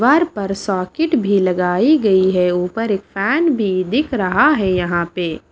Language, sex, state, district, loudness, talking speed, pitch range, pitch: Hindi, female, Maharashtra, Washim, -17 LUFS, 175 wpm, 180-245 Hz, 195 Hz